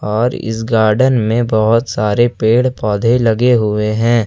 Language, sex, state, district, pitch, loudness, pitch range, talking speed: Hindi, male, Jharkhand, Ranchi, 115 Hz, -14 LUFS, 110-120 Hz, 155 wpm